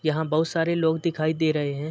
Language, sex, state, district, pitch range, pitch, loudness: Hindi, male, Uttar Pradesh, Muzaffarnagar, 155-165 Hz, 160 Hz, -24 LUFS